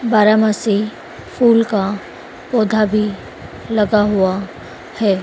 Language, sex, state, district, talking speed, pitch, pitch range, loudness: Hindi, female, Madhya Pradesh, Dhar, 90 wpm, 210 Hz, 200-220 Hz, -16 LUFS